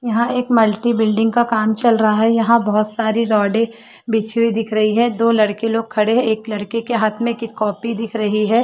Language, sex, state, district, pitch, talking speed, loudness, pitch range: Hindi, female, Chhattisgarh, Rajnandgaon, 225 Hz, 230 wpm, -17 LUFS, 215-230 Hz